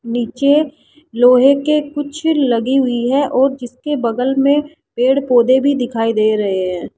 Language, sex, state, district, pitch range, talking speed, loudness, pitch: Hindi, female, Rajasthan, Jaipur, 240-285 Hz, 155 wpm, -15 LUFS, 260 Hz